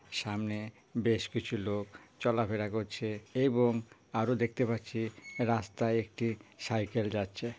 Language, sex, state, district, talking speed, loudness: Bengali, female, West Bengal, Jhargram, 110 wpm, -34 LUFS